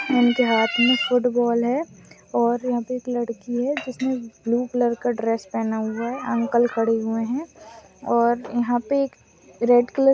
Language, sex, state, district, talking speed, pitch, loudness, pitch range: Hindi, female, Chhattisgarh, Balrampur, 175 wpm, 240 Hz, -22 LUFS, 235-250 Hz